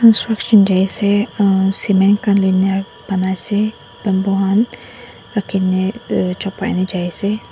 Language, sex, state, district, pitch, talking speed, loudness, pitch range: Nagamese, female, Nagaland, Dimapur, 195 Hz, 110 wpm, -16 LUFS, 190-205 Hz